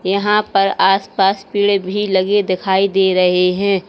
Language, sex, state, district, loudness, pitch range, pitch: Hindi, female, Uttar Pradesh, Lalitpur, -15 LUFS, 190-200 Hz, 195 Hz